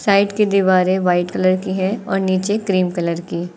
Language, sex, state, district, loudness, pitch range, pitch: Hindi, female, Uttar Pradesh, Lucknow, -18 LUFS, 180-195 Hz, 185 Hz